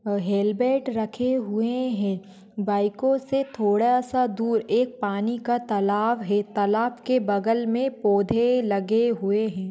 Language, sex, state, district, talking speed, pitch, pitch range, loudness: Hindi, female, Maharashtra, Pune, 135 wpm, 225 Hz, 205-245 Hz, -24 LUFS